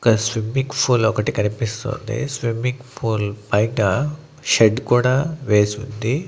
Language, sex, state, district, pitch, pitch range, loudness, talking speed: Telugu, male, Andhra Pradesh, Annamaya, 115 Hz, 110-135 Hz, -20 LUFS, 105 wpm